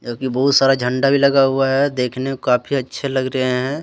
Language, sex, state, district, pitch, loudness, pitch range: Hindi, male, Jharkhand, Deoghar, 135 Hz, -17 LUFS, 130-140 Hz